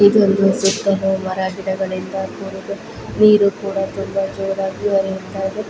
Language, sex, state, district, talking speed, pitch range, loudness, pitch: Kannada, female, Karnataka, Belgaum, 75 wpm, 195-200 Hz, -18 LUFS, 195 Hz